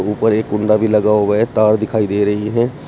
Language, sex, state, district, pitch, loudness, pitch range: Hindi, male, Uttar Pradesh, Shamli, 105 Hz, -15 LUFS, 105-110 Hz